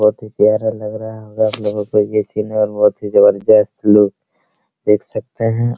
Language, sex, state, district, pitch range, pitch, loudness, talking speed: Hindi, male, Bihar, Araria, 105-110 Hz, 105 Hz, -15 LUFS, 165 wpm